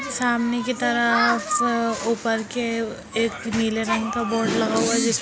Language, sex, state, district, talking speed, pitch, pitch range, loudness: Hindi, female, Bihar, Muzaffarpur, 140 wpm, 230 Hz, 225-240 Hz, -22 LUFS